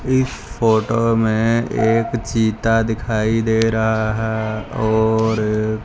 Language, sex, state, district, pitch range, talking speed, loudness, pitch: Hindi, male, Punjab, Fazilka, 110-115 Hz, 105 wpm, -18 LUFS, 110 Hz